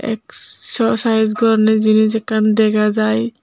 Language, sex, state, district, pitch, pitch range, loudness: Chakma, female, Tripura, Unakoti, 220 Hz, 215-225 Hz, -15 LUFS